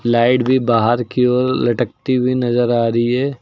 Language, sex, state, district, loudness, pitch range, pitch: Hindi, male, Uttar Pradesh, Lucknow, -16 LUFS, 120-125 Hz, 120 Hz